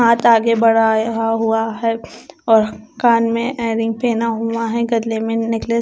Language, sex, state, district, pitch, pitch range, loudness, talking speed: Hindi, female, Chandigarh, Chandigarh, 230 Hz, 225-230 Hz, -17 LUFS, 155 wpm